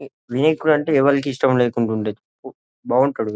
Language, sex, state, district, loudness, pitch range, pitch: Telugu, male, Telangana, Karimnagar, -19 LUFS, 110-140 Hz, 130 Hz